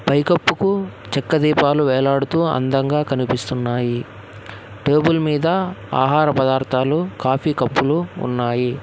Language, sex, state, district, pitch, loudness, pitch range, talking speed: Telugu, male, Telangana, Hyderabad, 140 Hz, -18 LUFS, 125-155 Hz, 100 wpm